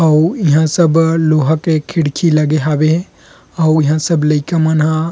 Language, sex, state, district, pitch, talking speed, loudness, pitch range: Chhattisgarhi, male, Chhattisgarh, Rajnandgaon, 160 Hz, 175 wpm, -13 LUFS, 155-165 Hz